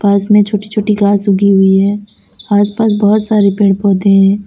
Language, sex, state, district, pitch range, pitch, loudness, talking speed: Hindi, female, Uttar Pradesh, Lalitpur, 200-210 Hz, 205 Hz, -11 LUFS, 200 wpm